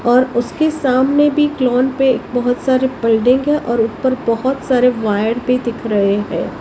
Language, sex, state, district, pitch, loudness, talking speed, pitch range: Hindi, female, Maharashtra, Mumbai Suburban, 250 Hz, -15 LUFS, 175 wpm, 230-265 Hz